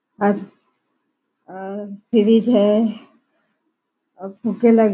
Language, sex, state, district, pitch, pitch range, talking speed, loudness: Hindi, female, Maharashtra, Nagpur, 215 Hz, 200-230 Hz, 85 wpm, -18 LUFS